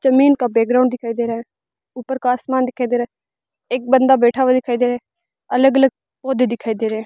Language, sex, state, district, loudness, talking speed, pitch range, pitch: Hindi, female, Rajasthan, Bikaner, -17 LUFS, 245 wpm, 240-265 Hz, 250 Hz